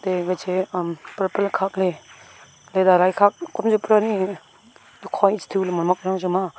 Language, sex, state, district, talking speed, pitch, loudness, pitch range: Wancho, female, Arunachal Pradesh, Longding, 165 wpm, 190 Hz, -21 LUFS, 185-200 Hz